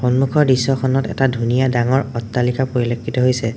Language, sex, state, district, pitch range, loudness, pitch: Assamese, male, Assam, Sonitpur, 120-135 Hz, -18 LUFS, 125 Hz